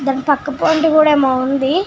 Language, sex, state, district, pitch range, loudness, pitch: Telugu, female, Telangana, Nalgonda, 270-315 Hz, -14 LUFS, 290 Hz